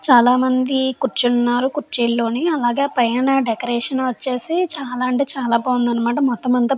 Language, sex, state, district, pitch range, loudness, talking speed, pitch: Telugu, female, Andhra Pradesh, Chittoor, 240-270 Hz, -18 LUFS, 140 wpm, 255 Hz